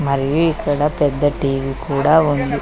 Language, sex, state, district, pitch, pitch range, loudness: Telugu, female, Telangana, Mahabubabad, 145 Hz, 140-150 Hz, -17 LUFS